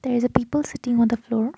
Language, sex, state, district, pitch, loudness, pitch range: English, female, Assam, Kamrup Metropolitan, 245 Hz, -22 LUFS, 235-260 Hz